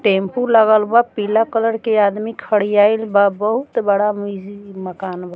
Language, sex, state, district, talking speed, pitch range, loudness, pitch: Bhojpuri, female, Bihar, Muzaffarpur, 155 wpm, 200-225 Hz, -16 LUFS, 210 Hz